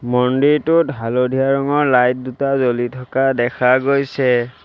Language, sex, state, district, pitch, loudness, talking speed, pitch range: Assamese, male, Assam, Sonitpur, 130 Hz, -16 LUFS, 115 wpm, 125-140 Hz